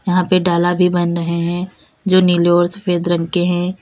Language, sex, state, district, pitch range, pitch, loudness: Hindi, female, Uttar Pradesh, Lalitpur, 175-180 Hz, 175 Hz, -16 LUFS